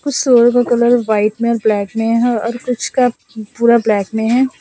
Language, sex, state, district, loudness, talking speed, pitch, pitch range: Hindi, male, Assam, Sonitpur, -14 LUFS, 235 wpm, 235 Hz, 220-245 Hz